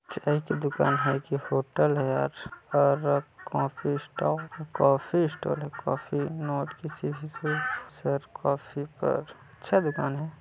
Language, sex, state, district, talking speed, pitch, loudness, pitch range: Hindi, male, Chhattisgarh, Balrampur, 115 wpm, 145 Hz, -28 LUFS, 140-150 Hz